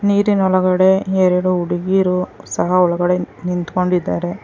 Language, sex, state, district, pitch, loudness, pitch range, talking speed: Kannada, female, Karnataka, Bangalore, 185 Hz, -16 LUFS, 180-190 Hz, 95 wpm